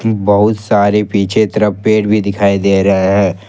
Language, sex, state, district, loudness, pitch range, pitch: Hindi, male, Jharkhand, Ranchi, -12 LUFS, 100-105 Hz, 100 Hz